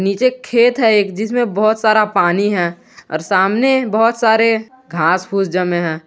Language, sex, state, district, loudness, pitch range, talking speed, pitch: Hindi, male, Jharkhand, Garhwa, -15 LUFS, 185-230 Hz, 170 wpm, 215 Hz